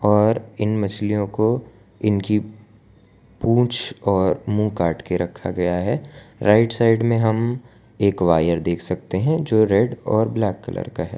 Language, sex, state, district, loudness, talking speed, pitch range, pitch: Hindi, male, Gujarat, Valsad, -20 LUFS, 155 wpm, 100-115 Hz, 105 Hz